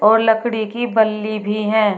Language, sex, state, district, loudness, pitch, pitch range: Hindi, female, Uttar Pradesh, Shamli, -18 LUFS, 220 Hz, 215-225 Hz